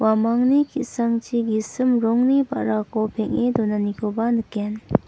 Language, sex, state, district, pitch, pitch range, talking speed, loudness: Garo, female, Meghalaya, West Garo Hills, 230 Hz, 215-245 Hz, 95 wpm, -21 LUFS